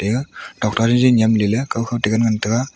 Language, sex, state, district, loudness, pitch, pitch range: Wancho, male, Arunachal Pradesh, Longding, -17 LUFS, 115 Hz, 110-120 Hz